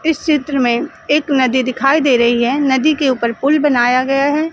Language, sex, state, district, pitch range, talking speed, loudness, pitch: Hindi, female, Chandigarh, Chandigarh, 255-295 Hz, 210 wpm, -14 LUFS, 275 Hz